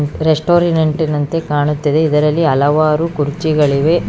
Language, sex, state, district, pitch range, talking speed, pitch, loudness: Kannada, female, Karnataka, Bangalore, 145-160 Hz, 90 wpm, 155 Hz, -14 LUFS